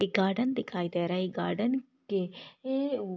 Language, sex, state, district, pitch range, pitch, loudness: Hindi, female, Maharashtra, Solapur, 185-255 Hz, 200 Hz, -31 LUFS